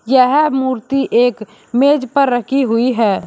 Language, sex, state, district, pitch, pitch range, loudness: Hindi, male, Uttar Pradesh, Shamli, 255 Hz, 235-275 Hz, -14 LUFS